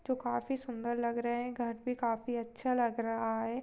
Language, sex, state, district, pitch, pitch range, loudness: Hindi, female, Goa, North and South Goa, 240 Hz, 230-250 Hz, -35 LUFS